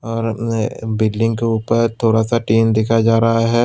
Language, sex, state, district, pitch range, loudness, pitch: Hindi, male, Tripura, West Tripura, 110-115 Hz, -16 LUFS, 115 Hz